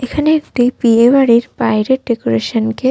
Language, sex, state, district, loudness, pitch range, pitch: Bengali, female, West Bengal, Jhargram, -13 LUFS, 230-260 Hz, 245 Hz